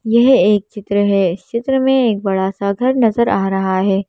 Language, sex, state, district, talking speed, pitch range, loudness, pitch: Hindi, female, Madhya Pradesh, Bhopal, 220 wpm, 195-235 Hz, -15 LUFS, 205 Hz